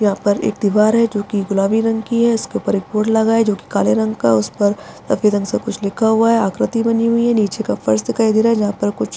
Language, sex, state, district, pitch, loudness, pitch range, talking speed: Hindi, female, Bihar, Madhepura, 210 Hz, -16 LUFS, 200-225 Hz, 315 wpm